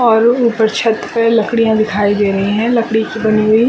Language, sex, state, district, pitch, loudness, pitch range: Hindi, female, Chhattisgarh, Raigarh, 220 Hz, -13 LUFS, 215-230 Hz